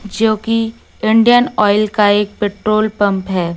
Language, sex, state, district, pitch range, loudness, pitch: Hindi, female, Chhattisgarh, Raipur, 205-220 Hz, -14 LUFS, 215 Hz